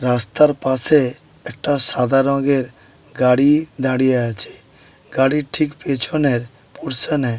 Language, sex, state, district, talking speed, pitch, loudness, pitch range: Bengali, male, West Bengal, Paschim Medinipur, 105 wpm, 135 Hz, -17 LUFS, 125-145 Hz